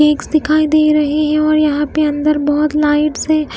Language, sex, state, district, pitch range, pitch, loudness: Hindi, female, Himachal Pradesh, Shimla, 295-305 Hz, 300 Hz, -14 LUFS